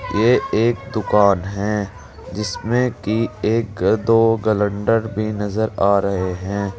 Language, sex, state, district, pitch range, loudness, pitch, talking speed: Hindi, male, Uttar Pradesh, Saharanpur, 100-110 Hz, -19 LUFS, 105 Hz, 125 wpm